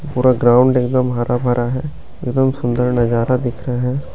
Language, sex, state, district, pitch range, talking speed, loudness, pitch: Hindi, male, Bihar, Begusarai, 120-130 Hz, 160 wpm, -16 LUFS, 125 Hz